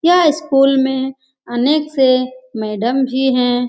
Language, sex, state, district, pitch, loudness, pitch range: Hindi, female, Bihar, Lakhisarai, 265 Hz, -15 LUFS, 250-275 Hz